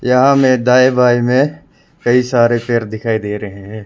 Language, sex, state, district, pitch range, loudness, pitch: Hindi, male, Arunachal Pradesh, Lower Dibang Valley, 110-125 Hz, -13 LUFS, 120 Hz